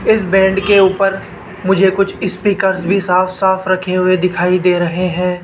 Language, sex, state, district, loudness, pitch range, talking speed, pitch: Hindi, male, Rajasthan, Jaipur, -14 LUFS, 180-195 Hz, 175 wpm, 190 Hz